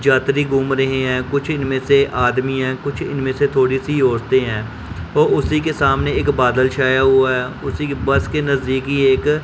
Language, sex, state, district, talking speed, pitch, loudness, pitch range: Hindi, male, Punjab, Pathankot, 195 wpm, 135 Hz, -17 LUFS, 130-140 Hz